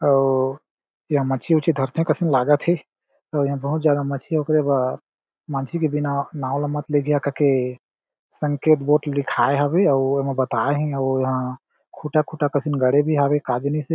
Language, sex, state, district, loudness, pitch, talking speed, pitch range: Chhattisgarhi, male, Chhattisgarh, Jashpur, -21 LUFS, 145 Hz, 180 wpm, 135-150 Hz